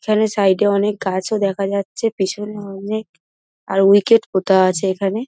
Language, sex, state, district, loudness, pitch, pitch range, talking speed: Bengali, female, West Bengal, Dakshin Dinajpur, -17 LUFS, 200 Hz, 195-210 Hz, 150 wpm